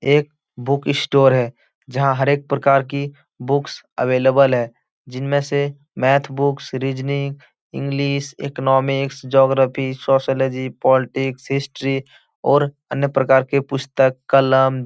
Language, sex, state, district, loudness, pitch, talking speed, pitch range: Hindi, male, Uttar Pradesh, Etah, -19 LUFS, 135 Hz, 120 wpm, 130-140 Hz